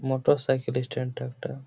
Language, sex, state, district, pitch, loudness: Bengali, male, West Bengal, Paschim Medinipur, 125 Hz, -28 LUFS